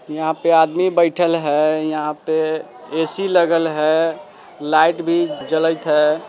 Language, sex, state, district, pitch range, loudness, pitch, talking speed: Bajjika, male, Bihar, Vaishali, 155-170 Hz, -17 LUFS, 160 Hz, 145 wpm